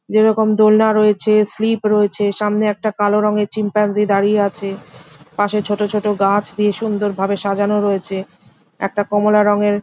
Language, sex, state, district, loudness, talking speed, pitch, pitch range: Bengali, female, West Bengal, Jhargram, -16 LUFS, 145 wpm, 210 Hz, 200-210 Hz